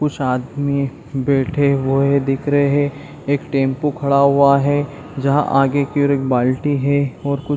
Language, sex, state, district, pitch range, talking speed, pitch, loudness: Hindi, male, Chhattisgarh, Bilaspur, 135-145 Hz, 175 wpm, 140 Hz, -17 LUFS